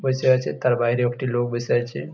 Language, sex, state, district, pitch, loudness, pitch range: Bengali, male, West Bengal, Jalpaiguri, 120 Hz, -22 LUFS, 120-130 Hz